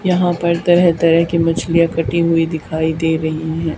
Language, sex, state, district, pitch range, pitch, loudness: Hindi, female, Haryana, Charkhi Dadri, 160-170 Hz, 165 Hz, -15 LUFS